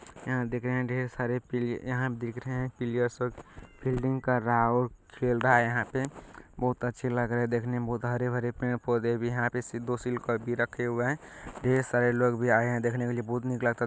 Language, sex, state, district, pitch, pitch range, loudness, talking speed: Hindi, male, Bihar, Kishanganj, 120 Hz, 120-125 Hz, -30 LUFS, 210 wpm